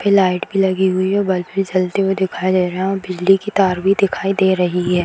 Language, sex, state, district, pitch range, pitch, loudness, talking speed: Hindi, female, Bihar, Darbhanga, 185-195 Hz, 190 Hz, -17 LUFS, 275 wpm